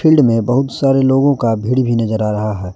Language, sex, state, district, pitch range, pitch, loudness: Hindi, male, Jharkhand, Garhwa, 110-135 Hz, 125 Hz, -14 LUFS